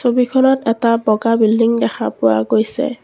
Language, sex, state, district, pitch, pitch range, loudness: Assamese, female, Assam, Kamrup Metropolitan, 230 Hz, 220-250 Hz, -15 LUFS